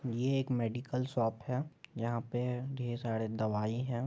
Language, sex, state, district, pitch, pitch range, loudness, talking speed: Hindi, male, Bihar, Madhepura, 120 Hz, 115-130 Hz, -36 LUFS, 160 wpm